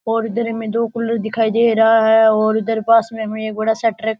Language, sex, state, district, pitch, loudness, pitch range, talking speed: Rajasthani, male, Rajasthan, Nagaur, 225 Hz, -16 LUFS, 220-230 Hz, 245 wpm